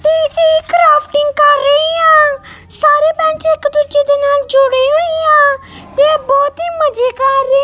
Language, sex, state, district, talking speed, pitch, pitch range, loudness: Punjabi, female, Punjab, Kapurthala, 175 wpm, 295 Hz, 285-315 Hz, -11 LUFS